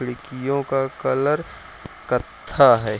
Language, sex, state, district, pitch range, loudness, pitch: Hindi, male, Bihar, Jamui, 125-140 Hz, -21 LUFS, 135 Hz